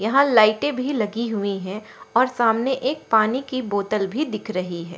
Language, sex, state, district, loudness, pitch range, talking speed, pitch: Hindi, female, Bihar, Katihar, -21 LUFS, 205-255 Hz, 190 wpm, 220 Hz